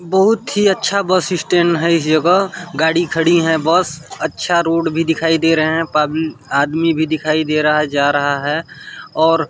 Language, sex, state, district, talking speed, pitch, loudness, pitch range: Hindi, male, Chhattisgarh, Balrampur, 175 wpm, 165 Hz, -15 LUFS, 155-170 Hz